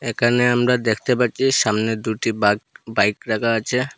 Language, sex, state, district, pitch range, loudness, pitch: Bengali, male, Assam, Hailakandi, 110-125 Hz, -19 LUFS, 115 Hz